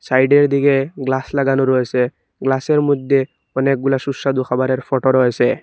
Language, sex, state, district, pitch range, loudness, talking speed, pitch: Bengali, male, Assam, Hailakandi, 130-140 Hz, -17 LUFS, 130 wpm, 135 Hz